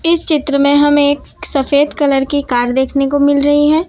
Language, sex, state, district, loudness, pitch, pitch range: Hindi, female, Gujarat, Valsad, -13 LUFS, 285 Hz, 280-295 Hz